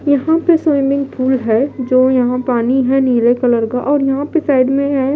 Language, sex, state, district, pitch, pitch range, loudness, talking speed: Hindi, female, Bihar, Katihar, 265 Hz, 250-280 Hz, -14 LUFS, 210 wpm